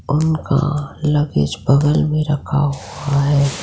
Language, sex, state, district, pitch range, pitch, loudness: Hindi, female, Maharashtra, Pune, 140-150 Hz, 145 Hz, -17 LUFS